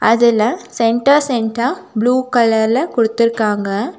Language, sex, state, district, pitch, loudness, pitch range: Tamil, female, Tamil Nadu, Nilgiris, 230 Hz, -15 LUFS, 220-250 Hz